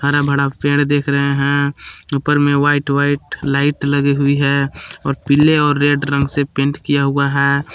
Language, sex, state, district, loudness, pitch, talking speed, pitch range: Hindi, male, Jharkhand, Palamu, -16 LUFS, 140 Hz, 185 wpm, 140-145 Hz